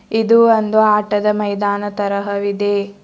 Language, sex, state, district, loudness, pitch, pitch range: Kannada, female, Karnataka, Bidar, -16 LUFS, 205 Hz, 200-215 Hz